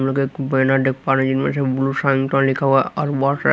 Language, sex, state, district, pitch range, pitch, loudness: Hindi, male, Haryana, Rohtak, 135-140 Hz, 135 Hz, -18 LUFS